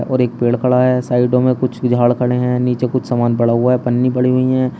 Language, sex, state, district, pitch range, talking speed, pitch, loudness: Hindi, male, Uttar Pradesh, Shamli, 120-125 Hz, 250 wpm, 125 Hz, -15 LUFS